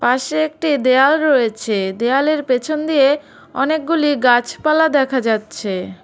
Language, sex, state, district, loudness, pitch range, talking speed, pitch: Bengali, female, West Bengal, Cooch Behar, -16 LUFS, 240-305 Hz, 110 wpm, 275 Hz